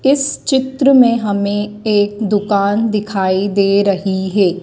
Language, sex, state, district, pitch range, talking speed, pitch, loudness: Hindi, female, Madhya Pradesh, Dhar, 200-225 Hz, 130 wpm, 205 Hz, -15 LUFS